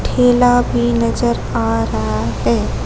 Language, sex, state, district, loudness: Hindi, female, Chhattisgarh, Raipur, -16 LUFS